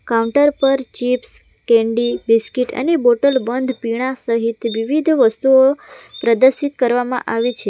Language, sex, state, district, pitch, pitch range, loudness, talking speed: Gujarati, female, Gujarat, Valsad, 250 Hz, 230-270 Hz, -16 LUFS, 125 wpm